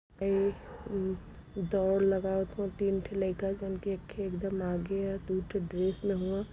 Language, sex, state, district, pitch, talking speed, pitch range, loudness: Hindi, female, Uttar Pradesh, Varanasi, 195 Hz, 175 wpm, 190-195 Hz, -33 LUFS